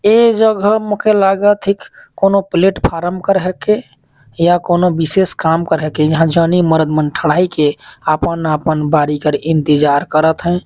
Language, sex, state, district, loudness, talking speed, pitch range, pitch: Chhattisgarhi, male, Chhattisgarh, Jashpur, -14 LUFS, 170 wpm, 155-195 Hz, 170 Hz